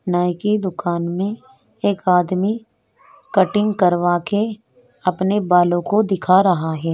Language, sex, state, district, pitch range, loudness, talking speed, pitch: Hindi, female, Chhattisgarh, Jashpur, 175-205 Hz, -18 LUFS, 130 wpm, 185 Hz